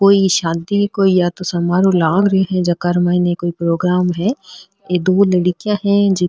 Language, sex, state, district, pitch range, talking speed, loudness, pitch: Rajasthani, female, Rajasthan, Nagaur, 175-195 Hz, 180 wpm, -15 LUFS, 180 Hz